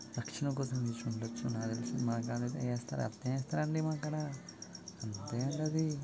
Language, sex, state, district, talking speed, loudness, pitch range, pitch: Telugu, male, Andhra Pradesh, Srikakulam, 140 wpm, -37 LUFS, 115-145 Hz, 120 Hz